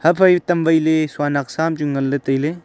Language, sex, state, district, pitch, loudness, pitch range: Wancho, male, Arunachal Pradesh, Longding, 155 Hz, -18 LUFS, 140-165 Hz